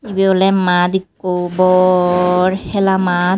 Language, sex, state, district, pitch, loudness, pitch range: Chakma, female, Tripura, Unakoti, 185 Hz, -14 LUFS, 180-190 Hz